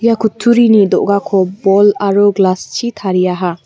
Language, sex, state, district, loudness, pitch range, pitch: Garo, female, Meghalaya, West Garo Hills, -12 LUFS, 185-215 Hz, 200 Hz